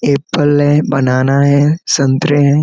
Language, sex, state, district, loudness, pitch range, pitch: Hindi, male, Chhattisgarh, Korba, -12 LUFS, 135-145 Hz, 145 Hz